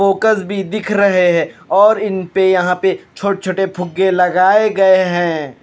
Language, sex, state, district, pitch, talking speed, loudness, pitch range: Hindi, male, Punjab, Kapurthala, 190 Hz, 170 wpm, -14 LUFS, 180-200 Hz